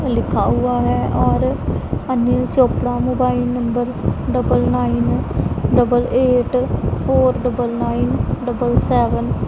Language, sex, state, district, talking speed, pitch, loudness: Hindi, female, Punjab, Pathankot, 115 wpm, 240 Hz, -17 LUFS